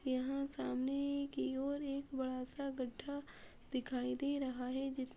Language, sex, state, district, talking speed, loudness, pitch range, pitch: Hindi, female, Uttar Pradesh, Muzaffarnagar, 165 wpm, -41 LUFS, 255-280 Hz, 270 Hz